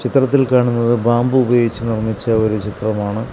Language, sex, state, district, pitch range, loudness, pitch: Malayalam, male, Kerala, Kasaragod, 110-125 Hz, -16 LUFS, 115 Hz